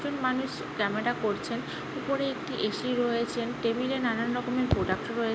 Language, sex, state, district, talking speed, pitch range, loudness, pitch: Bengali, female, West Bengal, Jhargram, 170 wpm, 230-260 Hz, -30 LUFS, 245 Hz